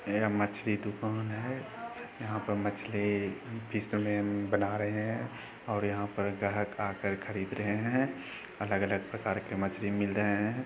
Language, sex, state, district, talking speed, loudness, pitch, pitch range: Hindi, male, Bihar, Samastipur, 150 wpm, -33 LUFS, 105 Hz, 100-110 Hz